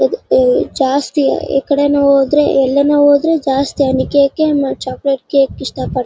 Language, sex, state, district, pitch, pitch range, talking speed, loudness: Kannada, female, Karnataka, Bellary, 280 Hz, 275-295 Hz, 130 wpm, -13 LUFS